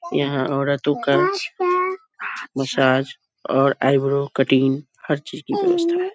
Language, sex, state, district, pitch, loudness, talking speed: Hindi, female, Bihar, East Champaran, 140 Hz, -20 LUFS, 115 wpm